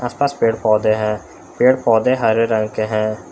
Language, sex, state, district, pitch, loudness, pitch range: Hindi, male, Jharkhand, Palamu, 110 Hz, -17 LUFS, 110-120 Hz